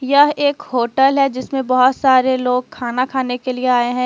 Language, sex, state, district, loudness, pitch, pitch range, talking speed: Hindi, female, Jharkhand, Deoghar, -16 LUFS, 255 Hz, 250-270 Hz, 205 wpm